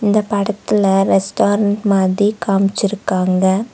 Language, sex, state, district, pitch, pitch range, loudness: Tamil, female, Tamil Nadu, Nilgiris, 200 Hz, 195-210 Hz, -16 LUFS